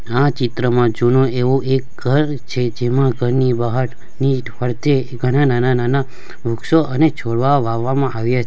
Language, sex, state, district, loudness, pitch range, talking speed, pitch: Gujarati, male, Gujarat, Valsad, -17 LUFS, 120-135 Hz, 135 wpm, 125 Hz